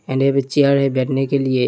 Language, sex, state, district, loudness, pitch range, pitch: Hindi, male, Uttar Pradesh, Hamirpur, -17 LUFS, 130-140 Hz, 135 Hz